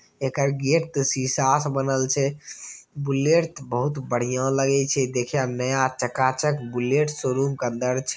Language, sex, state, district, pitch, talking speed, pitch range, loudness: Maithili, male, Bihar, Begusarai, 135 Hz, 160 wpm, 130-140 Hz, -23 LUFS